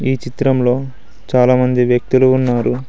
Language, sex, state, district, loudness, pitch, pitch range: Telugu, male, Telangana, Mahabubabad, -14 LUFS, 125 Hz, 125-130 Hz